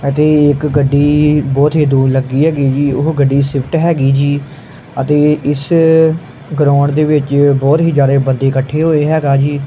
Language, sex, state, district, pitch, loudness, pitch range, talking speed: Punjabi, male, Punjab, Kapurthala, 145 Hz, -12 LUFS, 140-150 Hz, 170 wpm